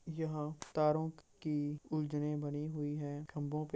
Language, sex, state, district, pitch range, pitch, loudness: Hindi, male, Bihar, Purnia, 145-155 Hz, 150 Hz, -39 LUFS